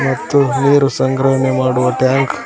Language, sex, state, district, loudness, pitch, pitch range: Kannada, male, Karnataka, Koppal, -14 LUFS, 135 Hz, 130-140 Hz